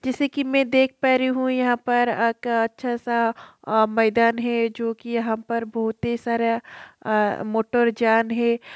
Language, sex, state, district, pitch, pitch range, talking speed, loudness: Hindi, female, Bihar, Kishanganj, 235 Hz, 230-245 Hz, 180 wpm, -22 LUFS